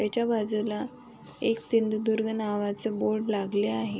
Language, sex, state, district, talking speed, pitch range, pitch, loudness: Marathi, female, Maharashtra, Sindhudurg, 120 wpm, 205-220 Hz, 215 Hz, -28 LUFS